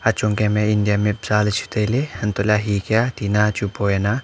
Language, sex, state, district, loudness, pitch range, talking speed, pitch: Wancho, male, Arunachal Pradesh, Longding, -20 LUFS, 105-110 Hz, 200 wpm, 105 Hz